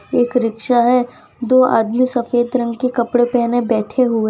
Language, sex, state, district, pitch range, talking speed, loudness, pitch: Hindi, female, Gujarat, Valsad, 235-250 Hz, 180 wpm, -16 LUFS, 240 Hz